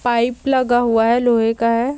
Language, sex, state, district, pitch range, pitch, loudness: Hindi, female, Rajasthan, Churu, 230-245 Hz, 240 Hz, -16 LUFS